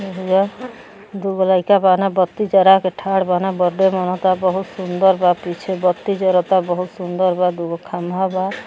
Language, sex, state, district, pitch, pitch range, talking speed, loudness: Hindi, female, Uttar Pradesh, Gorakhpur, 185 Hz, 180-190 Hz, 150 wpm, -17 LUFS